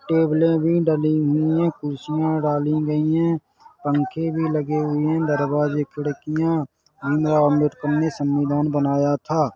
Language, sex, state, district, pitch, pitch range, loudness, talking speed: Hindi, male, Chhattisgarh, Korba, 150 Hz, 145-160 Hz, -21 LUFS, 150 wpm